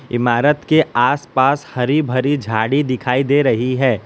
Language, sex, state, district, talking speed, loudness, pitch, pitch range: Hindi, male, Gujarat, Valsad, 160 wpm, -16 LUFS, 130 Hz, 125-145 Hz